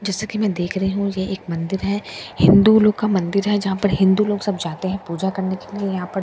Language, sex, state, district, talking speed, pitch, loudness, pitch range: Hindi, female, Bihar, Katihar, 300 wpm, 195 Hz, -19 LUFS, 185-205 Hz